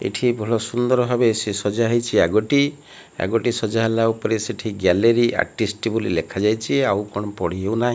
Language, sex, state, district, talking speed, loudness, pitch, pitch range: Odia, male, Odisha, Malkangiri, 165 wpm, -20 LUFS, 115 Hz, 105-120 Hz